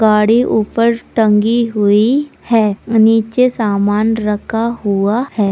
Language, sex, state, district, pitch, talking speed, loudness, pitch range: Hindi, female, Bihar, Purnia, 220 Hz, 110 wpm, -14 LUFS, 210-230 Hz